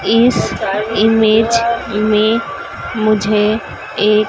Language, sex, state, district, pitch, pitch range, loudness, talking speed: Hindi, female, Madhya Pradesh, Dhar, 215 Hz, 210-225 Hz, -14 LUFS, 70 wpm